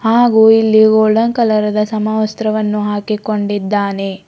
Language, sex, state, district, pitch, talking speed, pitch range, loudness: Kannada, female, Karnataka, Bidar, 215 Hz, 100 wpm, 210-220 Hz, -13 LUFS